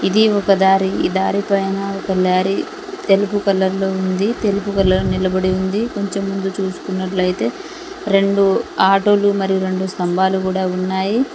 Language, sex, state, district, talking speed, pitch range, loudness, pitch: Telugu, female, Telangana, Mahabubabad, 130 wpm, 190-200 Hz, -17 LUFS, 195 Hz